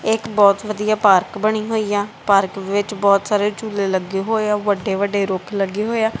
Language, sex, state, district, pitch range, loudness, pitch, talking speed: Punjabi, female, Punjab, Kapurthala, 195-215 Hz, -18 LUFS, 205 Hz, 205 wpm